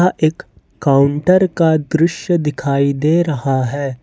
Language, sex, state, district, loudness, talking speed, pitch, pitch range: Hindi, male, Jharkhand, Ranchi, -15 LUFS, 135 wpm, 150 Hz, 140-170 Hz